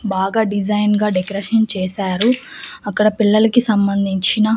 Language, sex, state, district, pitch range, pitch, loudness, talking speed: Telugu, female, Andhra Pradesh, Annamaya, 195-220 Hz, 210 Hz, -16 LUFS, 105 wpm